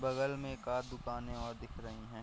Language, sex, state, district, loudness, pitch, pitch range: Hindi, male, Chhattisgarh, Raigarh, -41 LUFS, 120 Hz, 115-130 Hz